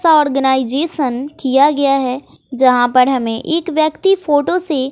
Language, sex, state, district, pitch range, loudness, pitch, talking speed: Hindi, female, Bihar, West Champaran, 260-310 Hz, -15 LUFS, 275 Hz, 145 wpm